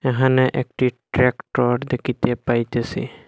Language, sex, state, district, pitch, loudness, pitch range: Bengali, male, Assam, Hailakandi, 125 Hz, -21 LUFS, 120-130 Hz